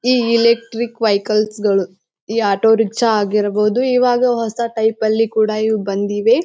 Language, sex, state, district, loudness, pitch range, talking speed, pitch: Kannada, female, Karnataka, Bijapur, -16 LUFS, 210-235 Hz, 130 wpm, 220 Hz